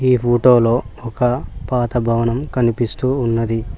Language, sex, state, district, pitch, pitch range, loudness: Telugu, male, Telangana, Mahabubabad, 120 Hz, 115-125 Hz, -17 LUFS